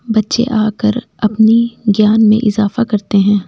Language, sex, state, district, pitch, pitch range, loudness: Hindi, female, Delhi, New Delhi, 215 Hz, 210-230 Hz, -13 LUFS